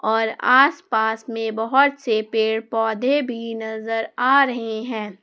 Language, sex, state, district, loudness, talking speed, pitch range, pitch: Hindi, female, Jharkhand, Palamu, -20 LUFS, 135 wpm, 220-250 Hz, 225 Hz